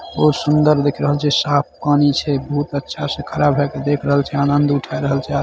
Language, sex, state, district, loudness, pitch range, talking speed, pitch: Maithili, male, Bihar, Saharsa, -17 LUFS, 140-145 Hz, 230 wpm, 145 Hz